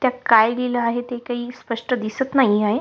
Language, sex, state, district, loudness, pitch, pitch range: Marathi, female, Maharashtra, Solapur, -20 LUFS, 245 Hz, 230-250 Hz